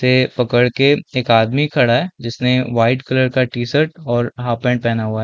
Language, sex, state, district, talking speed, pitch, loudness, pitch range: Hindi, male, Chhattisgarh, Balrampur, 205 wpm, 125 Hz, -16 LUFS, 120-130 Hz